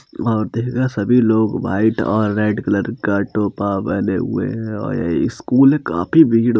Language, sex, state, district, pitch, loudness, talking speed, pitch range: Hindi, male, Uttar Pradesh, Jalaun, 110 Hz, -17 LUFS, 175 wpm, 105-120 Hz